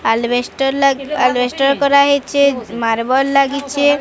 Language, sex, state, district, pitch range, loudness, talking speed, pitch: Odia, female, Odisha, Sambalpur, 250-280 Hz, -15 LUFS, 90 wpm, 275 Hz